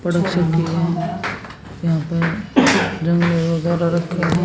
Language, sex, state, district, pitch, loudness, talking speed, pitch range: Hindi, female, Haryana, Jhajjar, 170 Hz, -19 LUFS, 80 wpm, 170-175 Hz